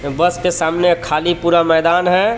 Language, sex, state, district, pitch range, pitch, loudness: Hindi, male, Jharkhand, Palamu, 160-175 Hz, 170 Hz, -15 LUFS